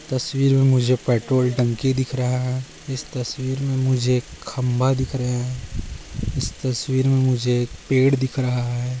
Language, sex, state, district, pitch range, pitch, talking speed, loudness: Hindi, male, Maharashtra, Sindhudurg, 125-130 Hz, 130 Hz, 160 wpm, -22 LUFS